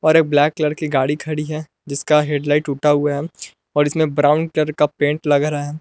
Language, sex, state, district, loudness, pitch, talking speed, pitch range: Hindi, male, Jharkhand, Palamu, -18 LUFS, 150 Hz, 235 wpm, 145-155 Hz